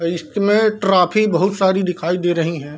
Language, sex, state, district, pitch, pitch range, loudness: Hindi, male, Bihar, Darbhanga, 180 Hz, 170-200 Hz, -17 LUFS